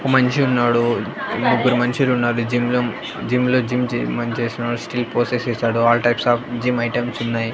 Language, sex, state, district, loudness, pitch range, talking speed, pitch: Telugu, male, Andhra Pradesh, Annamaya, -19 LUFS, 120-125 Hz, 160 wpm, 120 Hz